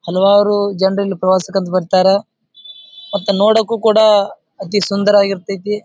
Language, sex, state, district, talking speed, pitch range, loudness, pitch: Kannada, male, Karnataka, Bijapur, 125 wpm, 195-205 Hz, -14 LUFS, 200 Hz